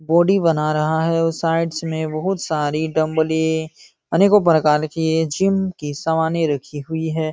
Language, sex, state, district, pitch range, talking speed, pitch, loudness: Hindi, male, Uttar Pradesh, Jalaun, 155-165 Hz, 155 wpm, 160 Hz, -19 LUFS